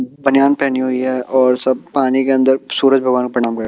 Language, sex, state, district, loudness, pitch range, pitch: Hindi, male, Bihar, Kaimur, -15 LUFS, 125-135 Hz, 130 Hz